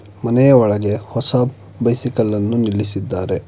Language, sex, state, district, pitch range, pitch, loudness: Kannada, male, Karnataka, Bangalore, 105-120 Hz, 115 Hz, -16 LUFS